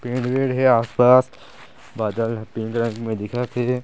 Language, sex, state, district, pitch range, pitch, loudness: Chhattisgarhi, male, Chhattisgarh, Sarguja, 115-125 Hz, 120 Hz, -20 LUFS